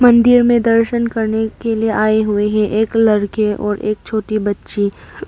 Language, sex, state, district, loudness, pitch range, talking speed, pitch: Hindi, female, Arunachal Pradesh, Papum Pare, -15 LUFS, 210-230 Hz, 170 wpm, 220 Hz